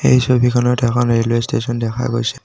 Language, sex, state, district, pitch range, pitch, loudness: Assamese, male, Assam, Kamrup Metropolitan, 115-125 Hz, 120 Hz, -16 LUFS